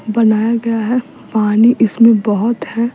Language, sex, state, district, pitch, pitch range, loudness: Hindi, female, Bihar, Patna, 230 Hz, 215-235 Hz, -14 LUFS